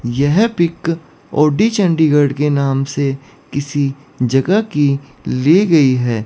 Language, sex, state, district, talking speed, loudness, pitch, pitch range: Hindi, female, Chandigarh, Chandigarh, 125 wpm, -15 LUFS, 145 Hz, 135-165 Hz